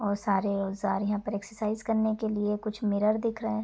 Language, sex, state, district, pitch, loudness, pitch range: Hindi, female, Uttar Pradesh, Gorakhpur, 210 Hz, -29 LUFS, 200-220 Hz